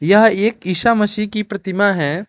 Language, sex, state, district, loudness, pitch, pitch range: Hindi, male, Arunachal Pradesh, Lower Dibang Valley, -16 LUFS, 205 Hz, 190-215 Hz